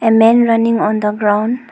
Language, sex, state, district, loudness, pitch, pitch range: English, female, Arunachal Pradesh, Longding, -13 LUFS, 225 Hz, 210-230 Hz